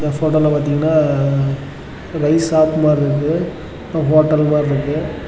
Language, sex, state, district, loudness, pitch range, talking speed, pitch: Tamil, male, Tamil Nadu, Namakkal, -16 LUFS, 145-155 Hz, 115 wpm, 150 Hz